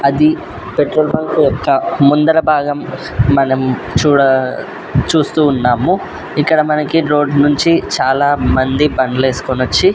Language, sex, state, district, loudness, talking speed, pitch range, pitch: Telugu, male, Andhra Pradesh, Sri Satya Sai, -13 LUFS, 115 wpm, 130-155 Hz, 145 Hz